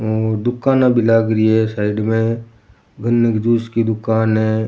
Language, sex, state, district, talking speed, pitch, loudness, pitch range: Rajasthani, male, Rajasthan, Churu, 165 wpm, 110 Hz, -16 LUFS, 110-115 Hz